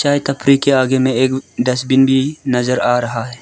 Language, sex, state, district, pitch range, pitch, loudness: Hindi, male, Arunachal Pradesh, Lower Dibang Valley, 125-135 Hz, 130 Hz, -15 LUFS